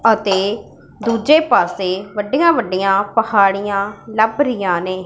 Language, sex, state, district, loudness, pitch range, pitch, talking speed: Punjabi, female, Punjab, Pathankot, -16 LUFS, 195-225 Hz, 205 Hz, 105 wpm